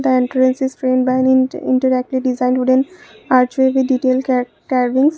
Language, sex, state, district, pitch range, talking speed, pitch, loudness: English, female, Assam, Kamrup Metropolitan, 255-260 Hz, 140 wpm, 255 Hz, -16 LUFS